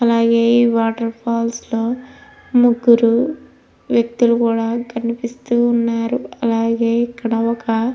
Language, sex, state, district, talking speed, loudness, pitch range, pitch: Telugu, female, Andhra Pradesh, Anantapur, 100 wpm, -17 LUFS, 230-240 Hz, 235 Hz